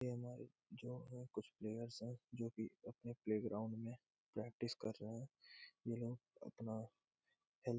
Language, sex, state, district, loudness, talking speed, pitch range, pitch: Hindi, male, Bihar, Gopalganj, -49 LUFS, 160 wpm, 110-125 Hz, 120 Hz